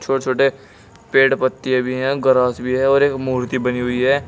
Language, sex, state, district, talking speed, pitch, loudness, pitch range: Hindi, male, Uttar Pradesh, Shamli, 210 wpm, 130 Hz, -18 LUFS, 125-135 Hz